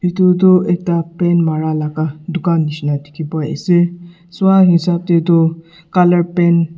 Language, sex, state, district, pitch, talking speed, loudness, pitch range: Nagamese, male, Nagaland, Dimapur, 170 Hz, 160 wpm, -14 LUFS, 160-175 Hz